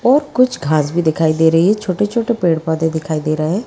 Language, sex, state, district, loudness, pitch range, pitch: Hindi, female, Maharashtra, Pune, -16 LUFS, 160-215 Hz, 165 Hz